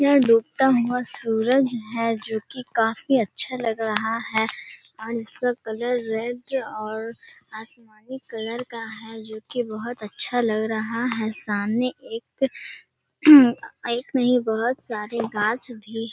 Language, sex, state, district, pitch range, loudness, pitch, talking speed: Hindi, male, Bihar, Kishanganj, 220-250 Hz, -23 LUFS, 230 Hz, 125 wpm